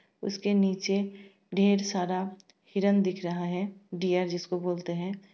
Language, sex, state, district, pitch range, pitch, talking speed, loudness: Hindi, female, Bihar, Bhagalpur, 180-200 Hz, 195 Hz, 135 wpm, -29 LUFS